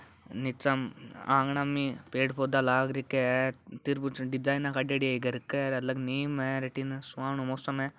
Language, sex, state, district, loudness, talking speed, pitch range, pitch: Marwari, male, Rajasthan, Churu, -31 LUFS, 170 wpm, 130-140 Hz, 135 Hz